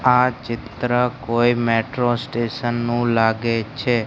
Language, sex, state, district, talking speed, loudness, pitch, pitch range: Gujarati, male, Gujarat, Gandhinagar, 120 wpm, -20 LUFS, 120 Hz, 115-125 Hz